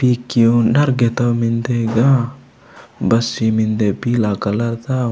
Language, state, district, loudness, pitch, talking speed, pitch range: Gondi, Chhattisgarh, Sukma, -16 LUFS, 120 Hz, 130 wpm, 115-125 Hz